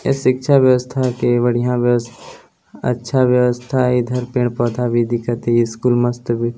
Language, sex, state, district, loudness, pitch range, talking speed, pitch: Hindi, male, Chhattisgarh, Balrampur, -17 LUFS, 120-125 Hz, 155 wpm, 120 Hz